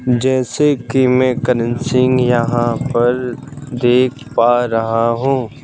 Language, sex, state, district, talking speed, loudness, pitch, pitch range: Hindi, male, Madhya Pradesh, Bhopal, 115 wpm, -15 LUFS, 125 Hz, 120-130 Hz